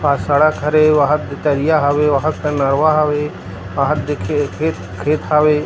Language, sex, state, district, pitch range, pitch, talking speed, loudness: Chhattisgarhi, male, Chhattisgarh, Rajnandgaon, 140-155 Hz, 150 Hz, 170 wpm, -16 LUFS